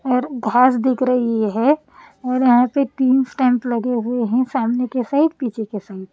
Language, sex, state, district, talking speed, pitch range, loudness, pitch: Hindi, female, Punjab, Pathankot, 195 wpm, 235-260 Hz, -18 LUFS, 250 Hz